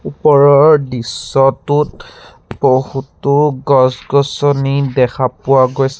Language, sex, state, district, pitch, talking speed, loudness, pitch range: Assamese, male, Assam, Sonitpur, 135 Hz, 70 wpm, -13 LUFS, 130-140 Hz